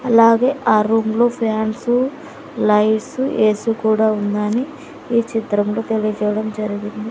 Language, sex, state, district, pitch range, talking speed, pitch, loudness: Telugu, female, Andhra Pradesh, Sri Satya Sai, 215-240 Hz, 110 wpm, 220 Hz, -18 LUFS